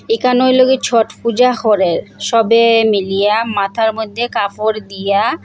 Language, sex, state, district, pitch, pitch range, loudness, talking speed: Bengali, female, Assam, Hailakandi, 225 Hz, 205-240 Hz, -14 LUFS, 120 wpm